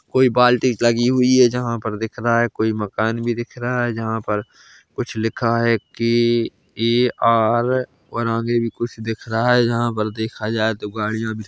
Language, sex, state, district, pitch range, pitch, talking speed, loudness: Hindi, male, Chhattisgarh, Bilaspur, 110-120 Hz, 115 Hz, 205 wpm, -19 LUFS